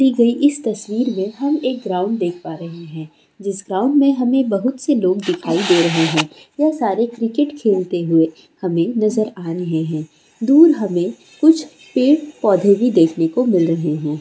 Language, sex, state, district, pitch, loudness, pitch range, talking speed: Hindi, female, Andhra Pradesh, Guntur, 200 Hz, -17 LUFS, 170-255 Hz, 190 wpm